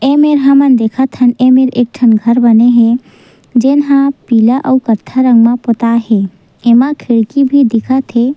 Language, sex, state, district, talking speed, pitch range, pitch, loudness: Chhattisgarhi, female, Chhattisgarh, Sukma, 185 wpm, 230-265 Hz, 245 Hz, -10 LUFS